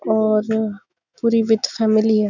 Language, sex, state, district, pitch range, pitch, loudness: Hindi, female, Chhattisgarh, Bastar, 215-220 Hz, 220 Hz, -19 LUFS